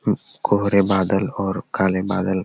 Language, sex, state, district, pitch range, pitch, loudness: Hindi, male, Bihar, Gaya, 95-100 Hz, 95 Hz, -20 LUFS